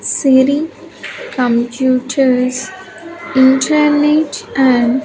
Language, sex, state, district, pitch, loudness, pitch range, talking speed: English, female, Andhra Pradesh, Sri Satya Sai, 265 Hz, -13 LUFS, 255-300 Hz, 50 wpm